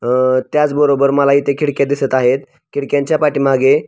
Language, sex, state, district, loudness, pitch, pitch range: Marathi, male, Maharashtra, Pune, -14 LUFS, 140 Hz, 135-145 Hz